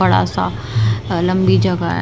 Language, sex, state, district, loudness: Hindi, female, Maharashtra, Mumbai Suburban, -16 LUFS